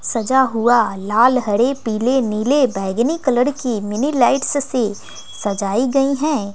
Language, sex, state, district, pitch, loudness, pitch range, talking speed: Hindi, female, Bihar, West Champaran, 245 Hz, -17 LUFS, 215-265 Hz, 140 wpm